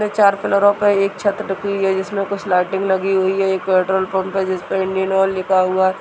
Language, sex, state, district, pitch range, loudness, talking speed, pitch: Hindi, female, Rajasthan, Churu, 190-200 Hz, -17 LUFS, 260 wpm, 195 Hz